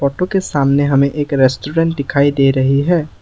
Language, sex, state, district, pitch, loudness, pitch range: Hindi, male, Assam, Sonitpur, 140 Hz, -14 LUFS, 140-155 Hz